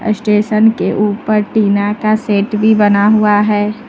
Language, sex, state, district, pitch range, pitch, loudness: Hindi, female, Uttar Pradesh, Lucknow, 205-215 Hz, 210 Hz, -12 LUFS